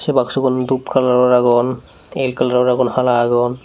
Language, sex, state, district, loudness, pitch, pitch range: Chakma, male, Tripura, Unakoti, -16 LUFS, 125 Hz, 125-130 Hz